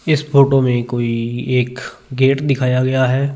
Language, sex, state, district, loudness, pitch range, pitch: Hindi, male, Punjab, Fazilka, -16 LUFS, 125-140 Hz, 130 Hz